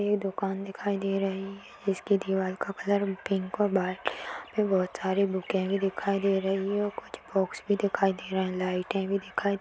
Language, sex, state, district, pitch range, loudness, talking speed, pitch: Hindi, female, Chhattisgarh, Kabirdham, 190-200 Hz, -29 LUFS, 200 wpm, 195 Hz